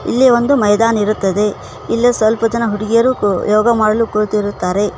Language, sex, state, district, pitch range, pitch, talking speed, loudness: Kannada, female, Karnataka, Koppal, 210-230 Hz, 215 Hz, 130 wpm, -14 LUFS